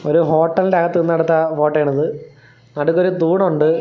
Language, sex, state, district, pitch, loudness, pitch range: Malayalam, male, Kerala, Thiruvananthapuram, 165 Hz, -16 LUFS, 150-170 Hz